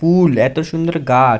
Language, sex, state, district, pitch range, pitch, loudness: Bengali, male, West Bengal, North 24 Parganas, 130-170 Hz, 160 Hz, -15 LUFS